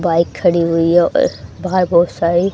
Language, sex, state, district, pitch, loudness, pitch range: Hindi, female, Haryana, Charkhi Dadri, 170 Hz, -15 LUFS, 170-180 Hz